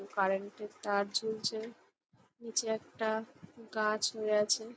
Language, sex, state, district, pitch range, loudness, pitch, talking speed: Bengali, female, West Bengal, Jhargram, 210-225 Hz, -34 LUFS, 220 Hz, 125 wpm